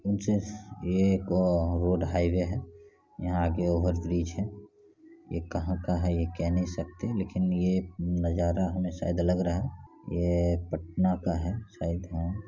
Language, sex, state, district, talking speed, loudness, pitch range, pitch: Hindi, male, Bihar, Saran, 150 wpm, -29 LUFS, 85-95 Hz, 90 Hz